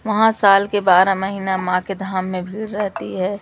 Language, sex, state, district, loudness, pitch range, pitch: Hindi, female, Madhya Pradesh, Umaria, -18 LUFS, 185-205 Hz, 195 Hz